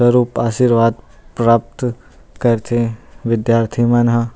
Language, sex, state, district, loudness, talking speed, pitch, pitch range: Chhattisgarhi, male, Chhattisgarh, Rajnandgaon, -16 LUFS, 110 wpm, 115 Hz, 115-120 Hz